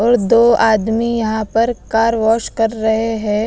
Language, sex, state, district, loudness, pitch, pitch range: Hindi, female, Bihar, West Champaran, -15 LUFS, 225 Hz, 220-230 Hz